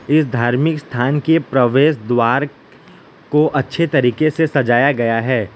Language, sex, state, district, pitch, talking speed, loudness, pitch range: Hindi, male, Gujarat, Valsad, 135 Hz, 140 wpm, -16 LUFS, 120-155 Hz